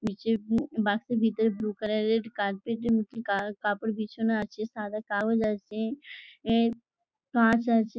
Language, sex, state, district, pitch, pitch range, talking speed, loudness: Bengali, female, West Bengal, Jhargram, 225 Hz, 215-230 Hz, 165 wpm, -28 LUFS